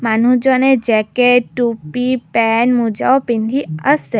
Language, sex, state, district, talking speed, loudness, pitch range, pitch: Assamese, female, Assam, Sonitpur, 85 wpm, -14 LUFS, 225-255 Hz, 240 Hz